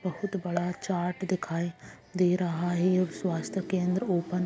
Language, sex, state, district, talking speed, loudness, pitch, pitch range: Magahi, female, Bihar, Gaya, 160 wpm, -29 LUFS, 180 Hz, 175-185 Hz